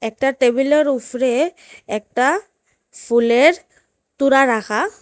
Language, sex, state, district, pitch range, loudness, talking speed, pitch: Bengali, female, Assam, Hailakandi, 240-320 Hz, -17 LUFS, 85 wpm, 270 Hz